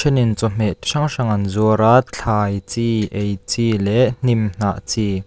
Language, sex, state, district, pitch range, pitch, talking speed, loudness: Mizo, male, Mizoram, Aizawl, 100-120 Hz, 110 Hz, 205 wpm, -18 LUFS